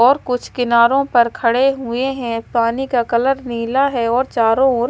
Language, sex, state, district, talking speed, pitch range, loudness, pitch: Hindi, female, Maharashtra, Mumbai Suburban, 185 wpm, 235-265 Hz, -16 LUFS, 245 Hz